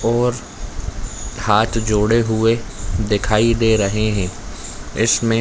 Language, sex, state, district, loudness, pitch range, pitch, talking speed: Hindi, male, Chhattisgarh, Bilaspur, -18 LUFS, 105-115 Hz, 110 Hz, 100 wpm